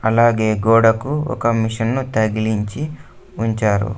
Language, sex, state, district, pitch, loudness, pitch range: Telugu, male, Andhra Pradesh, Sri Satya Sai, 115 Hz, -18 LUFS, 110-120 Hz